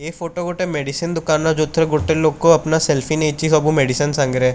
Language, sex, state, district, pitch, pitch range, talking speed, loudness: Odia, male, Odisha, Khordha, 155 Hz, 150-165 Hz, 185 wpm, -17 LUFS